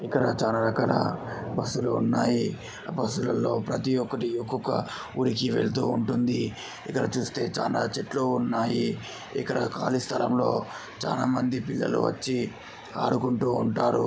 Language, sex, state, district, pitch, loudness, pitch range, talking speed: Telugu, male, Andhra Pradesh, Srikakulam, 125 Hz, -27 LUFS, 120-130 Hz, 115 wpm